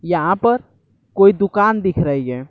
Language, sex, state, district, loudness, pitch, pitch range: Hindi, male, Bihar, Kaimur, -16 LUFS, 195 Hz, 160-205 Hz